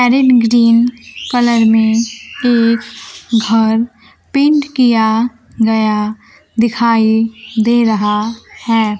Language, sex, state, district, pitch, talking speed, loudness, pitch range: Hindi, female, Bihar, Kaimur, 230 Hz, 80 wpm, -13 LUFS, 220-240 Hz